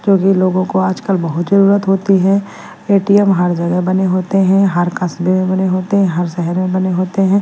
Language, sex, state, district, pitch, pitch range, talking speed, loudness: Hindi, female, Bihar, West Champaran, 185 Hz, 180-195 Hz, 210 wpm, -14 LUFS